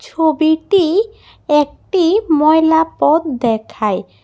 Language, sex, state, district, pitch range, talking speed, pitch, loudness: Bengali, female, Tripura, West Tripura, 295-335 Hz, 70 wpm, 315 Hz, -14 LUFS